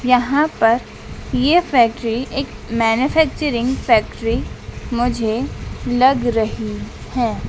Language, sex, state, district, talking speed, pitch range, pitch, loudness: Hindi, female, Madhya Pradesh, Dhar, 90 wpm, 230-265 Hz, 245 Hz, -18 LUFS